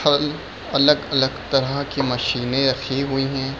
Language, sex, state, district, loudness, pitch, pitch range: Hindi, male, Bihar, Lakhisarai, -20 LUFS, 135 Hz, 135-140 Hz